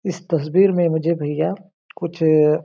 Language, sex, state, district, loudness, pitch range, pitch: Hindi, male, Chhattisgarh, Balrampur, -19 LUFS, 155-185 Hz, 170 Hz